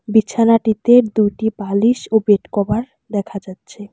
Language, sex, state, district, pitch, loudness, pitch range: Bengali, female, West Bengal, Alipurduar, 215 Hz, -16 LUFS, 205-230 Hz